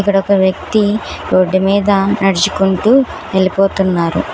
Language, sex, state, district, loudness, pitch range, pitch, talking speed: Telugu, female, Telangana, Hyderabad, -13 LUFS, 190-205 Hz, 195 Hz, 95 wpm